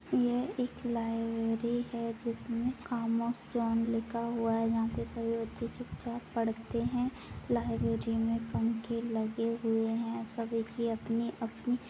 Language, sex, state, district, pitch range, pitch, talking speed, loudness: Hindi, female, Bihar, Jahanabad, 225-235 Hz, 230 Hz, 135 wpm, -34 LUFS